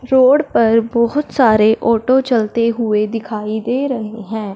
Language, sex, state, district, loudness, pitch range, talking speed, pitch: Hindi, female, Punjab, Fazilka, -15 LUFS, 220-255 Hz, 145 wpm, 230 Hz